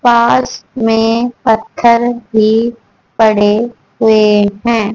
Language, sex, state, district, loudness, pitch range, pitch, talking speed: Hindi, female, Haryana, Charkhi Dadri, -12 LUFS, 220-235 Hz, 225 Hz, 85 wpm